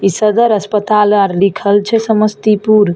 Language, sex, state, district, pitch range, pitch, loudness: Maithili, female, Bihar, Samastipur, 200-215 Hz, 210 Hz, -12 LUFS